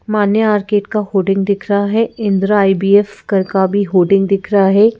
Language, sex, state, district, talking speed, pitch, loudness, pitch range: Hindi, female, Madhya Pradesh, Bhopal, 190 wpm, 200 Hz, -14 LUFS, 195-210 Hz